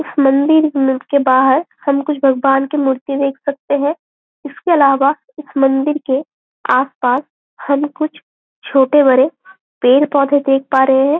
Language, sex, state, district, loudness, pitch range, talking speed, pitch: Hindi, female, Chhattisgarh, Bastar, -14 LUFS, 270-295 Hz, 145 wpm, 280 Hz